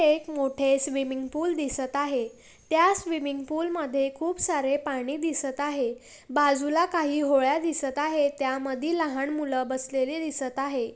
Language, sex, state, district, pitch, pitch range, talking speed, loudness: Marathi, female, Maharashtra, Pune, 285 Hz, 270-310 Hz, 150 wpm, -27 LUFS